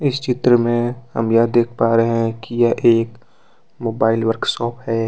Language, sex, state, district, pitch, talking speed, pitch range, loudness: Hindi, male, Jharkhand, Deoghar, 115 Hz, 175 wpm, 115-120 Hz, -18 LUFS